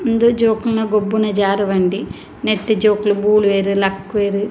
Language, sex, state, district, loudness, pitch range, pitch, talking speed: Tulu, female, Karnataka, Dakshina Kannada, -16 LUFS, 200-220 Hz, 210 Hz, 105 wpm